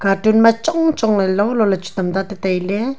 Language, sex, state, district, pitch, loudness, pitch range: Wancho, female, Arunachal Pradesh, Longding, 205 Hz, -17 LUFS, 195-230 Hz